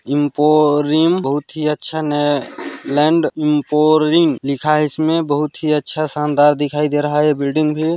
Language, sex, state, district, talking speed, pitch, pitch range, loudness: Chhattisgarhi, male, Chhattisgarh, Balrampur, 160 wpm, 150 Hz, 145-155 Hz, -16 LUFS